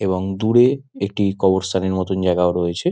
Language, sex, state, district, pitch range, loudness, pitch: Bengali, male, West Bengal, Dakshin Dinajpur, 95-110 Hz, -19 LUFS, 95 Hz